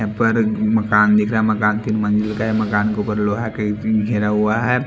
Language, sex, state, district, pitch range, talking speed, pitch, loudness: Hindi, male, Haryana, Jhajjar, 105-110 Hz, 260 wpm, 110 Hz, -18 LUFS